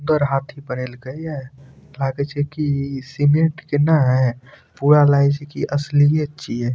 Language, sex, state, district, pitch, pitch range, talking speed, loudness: Maithili, male, Bihar, Madhepura, 145 Hz, 135-150 Hz, 140 wpm, -19 LUFS